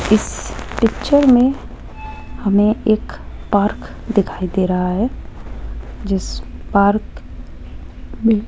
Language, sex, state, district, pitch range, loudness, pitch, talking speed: Hindi, female, Rajasthan, Jaipur, 180-220 Hz, -17 LUFS, 200 Hz, 100 wpm